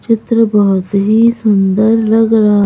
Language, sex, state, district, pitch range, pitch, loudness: Hindi, female, Madhya Pradesh, Bhopal, 205-225 Hz, 220 Hz, -11 LUFS